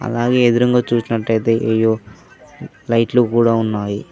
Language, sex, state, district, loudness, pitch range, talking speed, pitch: Telugu, male, Telangana, Mahabubabad, -16 LUFS, 110-120 Hz, 100 wpm, 115 Hz